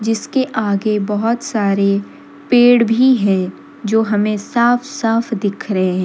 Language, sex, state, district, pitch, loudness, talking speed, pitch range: Hindi, female, Jharkhand, Deoghar, 220 Hz, -16 LUFS, 140 wpm, 205-240 Hz